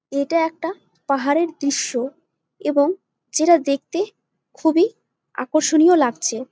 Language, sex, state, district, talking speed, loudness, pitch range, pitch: Bengali, female, West Bengal, Jalpaiguri, 90 wpm, -20 LUFS, 280-340 Hz, 315 Hz